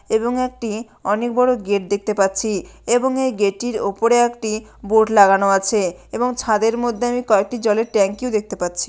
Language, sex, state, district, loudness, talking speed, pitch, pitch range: Bengali, female, West Bengal, Malda, -19 LUFS, 175 wpm, 220 Hz, 200-240 Hz